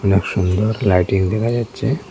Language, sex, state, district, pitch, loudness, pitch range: Bengali, male, Assam, Hailakandi, 100 Hz, -18 LUFS, 95-120 Hz